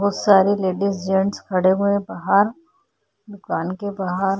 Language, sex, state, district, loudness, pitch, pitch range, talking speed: Hindi, female, Chhattisgarh, Korba, -20 LUFS, 200 Hz, 190-200 Hz, 165 wpm